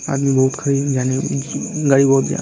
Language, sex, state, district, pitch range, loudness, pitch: Hindi, male, Uttar Pradesh, Muzaffarnagar, 135-140 Hz, -17 LUFS, 135 Hz